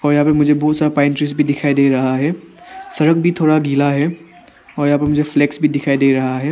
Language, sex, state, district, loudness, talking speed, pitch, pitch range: Hindi, male, Arunachal Pradesh, Papum Pare, -15 LUFS, 240 wpm, 150 Hz, 145-155 Hz